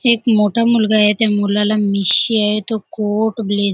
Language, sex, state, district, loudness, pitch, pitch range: Marathi, female, Maharashtra, Chandrapur, -15 LUFS, 215 Hz, 205-220 Hz